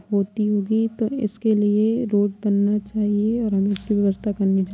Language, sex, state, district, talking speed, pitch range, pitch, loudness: Hindi, female, Bihar, Sitamarhi, 190 wpm, 200-220 Hz, 210 Hz, -21 LUFS